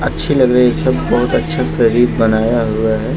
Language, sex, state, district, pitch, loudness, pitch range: Hindi, male, Maharashtra, Mumbai Suburban, 115 Hz, -14 LUFS, 80-125 Hz